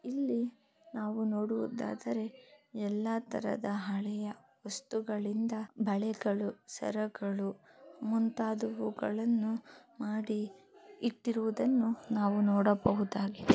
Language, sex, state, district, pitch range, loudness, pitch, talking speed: Kannada, female, Karnataka, Chamarajanagar, 205-235 Hz, -34 LUFS, 220 Hz, 65 wpm